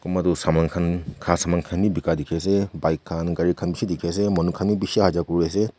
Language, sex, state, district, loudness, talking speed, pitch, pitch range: Nagamese, male, Nagaland, Kohima, -23 LUFS, 260 wpm, 85 Hz, 85-95 Hz